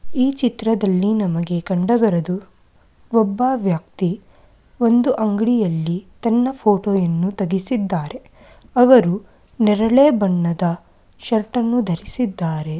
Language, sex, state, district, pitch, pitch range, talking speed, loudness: Kannada, female, Karnataka, Mysore, 205 Hz, 180-235 Hz, 80 wpm, -18 LUFS